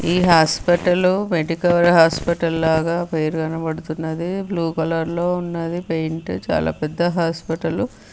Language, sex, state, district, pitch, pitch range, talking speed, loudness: Telugu, female, Telangana, Karimnagar, 165 Hz, 160-175 Hz, 110 wpm, -19 LUFS